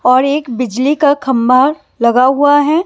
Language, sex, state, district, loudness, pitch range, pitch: Hindi, male, Delhi, New Delhi, -12 LUFS, 250-290 Hz, 270 Hz